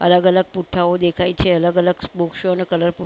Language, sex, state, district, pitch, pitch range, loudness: Gujarati, female, Maharashtra, Mumbai Suburban, 180 Hz, 175-180 Hz, -16 LUFS